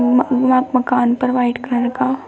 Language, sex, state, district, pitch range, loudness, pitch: Hindi, female, Uttar Pradesh, Shamli, 245-255 Hz, -16 LUFS, 250 Hz